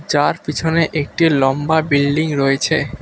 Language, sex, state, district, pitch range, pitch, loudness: Bengali, male, West Bengal, Alipurduar, 145-160 Hz, 150 Hz, -16 LUFS